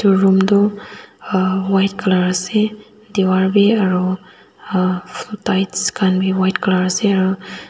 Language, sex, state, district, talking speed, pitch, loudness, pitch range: Nagamese, female, Nagaland, Dimapur, 125 wpm, 190 Hz, -17 LUFS, 185-205 Hz